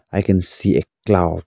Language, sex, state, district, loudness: English, male, Arunachal Pradesh, Lower Dibang Valley, -19 LUFS